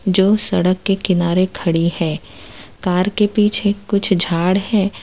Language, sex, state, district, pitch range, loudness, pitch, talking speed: Hindi, female, Gujarat, Valsad, 170-200 Hz, -17 LUFS, 190 Hz, 145 wpm